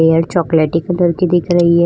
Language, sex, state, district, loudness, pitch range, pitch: Hindi, female, Goa, North and South Goa, -14 LUFS, 165-175 Hz, 170 Hz